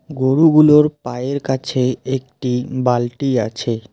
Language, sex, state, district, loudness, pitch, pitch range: Bengali, male, West Bengal, Alipurduar, -17 LUFS, 130 Hz, 125-140 Hz